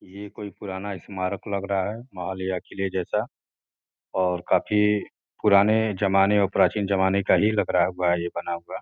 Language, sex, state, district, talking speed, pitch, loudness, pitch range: Hindi, male, Uttar Pradesh, Gorakhpur, 185 wpm, 100 Hz, -24 LUFS, 95-105 Hz